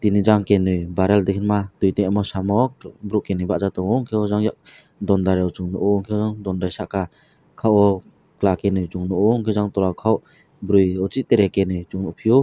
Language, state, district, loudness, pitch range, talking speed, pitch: Kokborok, Tripura, West Tripura, -20 LUFS, 95-105 Hz, 175 wpm, 100 Hz